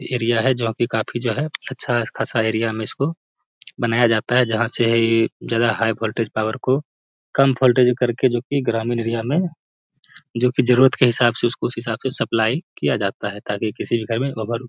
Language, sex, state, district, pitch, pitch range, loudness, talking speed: Hindi, male, Bihar, Gaya, 120 Hz, 115-130 Hz, -20 LUFS, 215 wpm